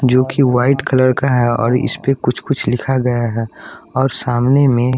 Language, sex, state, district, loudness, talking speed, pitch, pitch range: Hindi, male, Bihar, West Champaran, -15 LUFS, 205 wpm, 130 Hz, 120-135 Hz